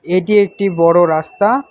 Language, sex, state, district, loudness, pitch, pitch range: Bengali, male, West Bengal, Alipurduar, -13 LUFS, 185 Hz, 170-205 Hz